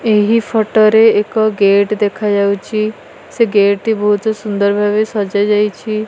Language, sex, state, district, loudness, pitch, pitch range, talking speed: Odia, female, Odisha, Malkangiri, -13 LUFS, 210 Hz, 205-220 Hz, 130 wpm